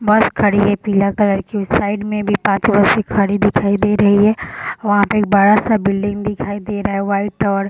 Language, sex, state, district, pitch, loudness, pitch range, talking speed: Hindi, female, Bihar, Purnia, 205 Hz, -15 LUFS, 200-210 Hz, 225 wpm